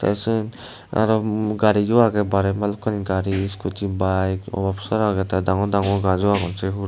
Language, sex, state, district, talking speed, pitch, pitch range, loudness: Chakma, male, Tripura, Dhalai, 175 wpm, 100 Hz, 95-110 Hz, -21 LUFS